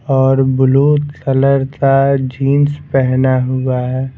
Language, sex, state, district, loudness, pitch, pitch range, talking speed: Hindi, male, Bihar, Patna, -13 LUFS, 135 Hz, 130-140 Hz, 130 wpm